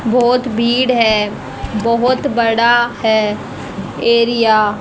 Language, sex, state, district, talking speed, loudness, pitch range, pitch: Hindi, female, Haryana, Rohtak, 100 wpm, -14 LUFS, 220-240 Hz, 235 Hz